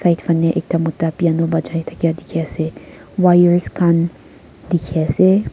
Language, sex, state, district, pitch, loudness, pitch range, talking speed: Nagamese, female, Nagaland, Kohima, 165 Hz, -17 LUFS, 165-175 Hz, 140 wpm